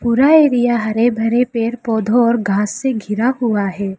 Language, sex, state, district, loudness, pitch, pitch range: Hindi, female, Arunachal Pradesh, Lower Dibang Valley, -15 LUFS, 235 Hz, 215-245 Hz